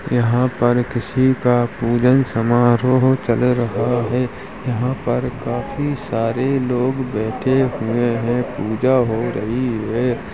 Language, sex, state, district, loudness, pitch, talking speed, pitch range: Hindi, male, Uttar Pradesh, Jalaun, -18 LUFS, 125 Hz, 120 wpm, 120-130 Hz